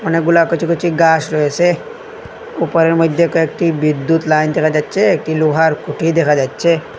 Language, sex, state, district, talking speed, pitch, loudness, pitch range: Bengali, male, Assam, Hailakandi, 145 wpm, 165 Hz, -14 LUFS, 155-170 Hz